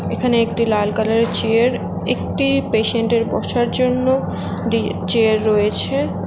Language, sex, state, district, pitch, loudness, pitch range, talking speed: Bengali, female, West Bengal, Alipurduar, 225 Hz, -17 LUFS, 215-240 Hz, 135 wpm